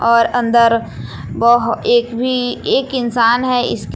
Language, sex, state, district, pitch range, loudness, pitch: Hindi, female, Jharkhand, Palamu, 230-245 Hz, -15 LUFS, 235 Hz